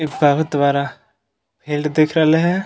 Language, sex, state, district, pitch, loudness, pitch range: Magahi, male, Bihar, Gaya, 155 Hz, -17 LUFS, 145-160 Hz